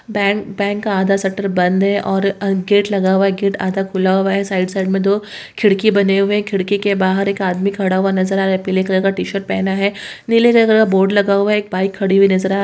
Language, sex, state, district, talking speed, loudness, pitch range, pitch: Hindi, female, Bihar, Saharsa, 270 wpm, -16 LUFS, 190-200 Hz, 195 Hz